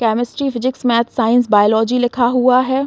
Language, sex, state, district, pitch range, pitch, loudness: Hindi, female, Uttar Pradesh, Gorakhpur, 230-255 Hz, 245 Hz, -15 LUFS